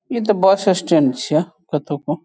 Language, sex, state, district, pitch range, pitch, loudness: Maithili, male, Bihar, Saharsa, 155-215 Hz, 190 Hz, -18 LUFS